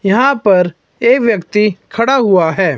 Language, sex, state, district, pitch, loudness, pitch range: Hindi, male, Himachal Pradesh, Shimla, 205 Hz, -12 LUFS, 180-230 Hz